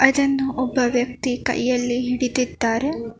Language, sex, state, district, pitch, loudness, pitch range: Kannada, female, Karnataka, Bangalore, 250 Hz, -21 LUFS, 245-260 Hz